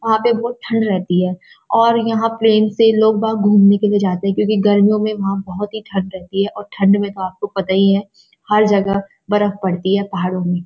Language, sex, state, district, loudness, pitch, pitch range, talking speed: Hindi, female, Uttarakhand, Uttarkashi, -16 LUFS, 205 Hz, 195-215 Hz, 230 wpm